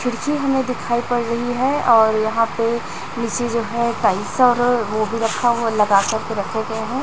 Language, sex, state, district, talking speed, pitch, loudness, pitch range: Hindi, female, Chhattisgarh, Raipur, 205 wpm, 235 Hz, -19 LUFS, 220-245 Hz